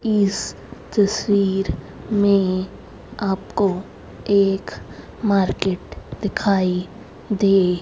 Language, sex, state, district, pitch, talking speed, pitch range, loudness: Hindi, female, Haryana, Rohtak, 195 Hz, 70 wpm, 190-205 Hz, -20 LUFS